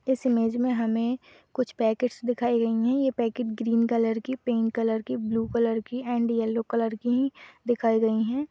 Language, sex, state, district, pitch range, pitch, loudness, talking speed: Hindi, female, Uttar Pradesh, Budaun, 225-245 Hz, 235 Hz, -26 LUFS, 185 wpm